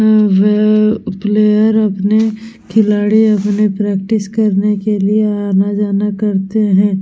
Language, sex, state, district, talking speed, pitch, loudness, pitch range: Hindi, female, Bihar, Vaishali, 120 wpm, 210 Hz, -13 LUFS, 205-215 Hz